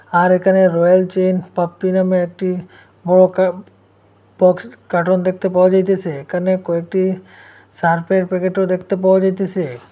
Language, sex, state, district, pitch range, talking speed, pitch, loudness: Bengali, male, Assam, Hailakandi, 175-185 Hz, 125 wpm, 185 Hz, -16 LUFS